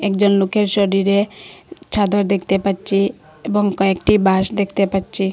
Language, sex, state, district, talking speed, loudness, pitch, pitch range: Bengali, female, Assam, Hailakandi, 125 wpm, -17 LUFS, 200 Hz, 195-205 Hz